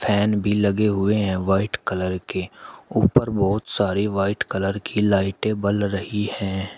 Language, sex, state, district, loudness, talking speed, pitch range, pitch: Hindi, male, Uttar Pradesh, Shamli, -22 LUFS, 160 wpm, 95-105 Hz, 100 Hz